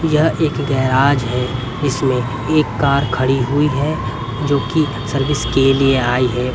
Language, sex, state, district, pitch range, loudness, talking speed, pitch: Hindi, male, Haryana, Rohtak, 125-145 Hz, -16 LUFS, 145 wpm, 135 Hz